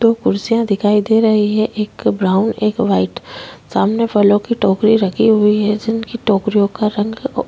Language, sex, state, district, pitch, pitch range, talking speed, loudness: Hindi, female, Chhattisgarh, Korba, 215 Hz, 205-225 Hz, 170 wpm, -15 LUFS